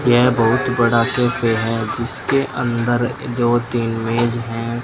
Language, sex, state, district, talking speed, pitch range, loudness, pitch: Hindi, male, Rajasthan, Bikaner, 135 wpm, 115-125 Hz, -18 LUFS, 120 Hz